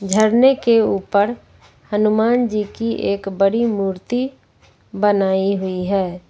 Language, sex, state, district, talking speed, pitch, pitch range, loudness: Hindi, female, Jharkhand, Ranchi, 115 wpm, 205 Hz, 195-230 Hz, -18 LUFS